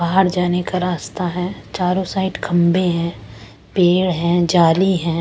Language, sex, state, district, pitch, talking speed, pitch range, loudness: Hindi, female, Punjab, Pathankot, 180 Hz, 150 wpm, 170-180 Hz, -18 LUFS